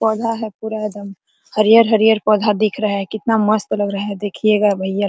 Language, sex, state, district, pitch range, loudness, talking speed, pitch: Hindi, female, Jharkhand, Sahebganj, 205-220 Hz, -17 LUFS, 200 wpm, 215 Hz